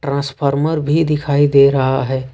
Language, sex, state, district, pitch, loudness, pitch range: Hindi, male, Jharkhand, Ranchi, 140 Hz, -15 LUFS, 135-145 Hz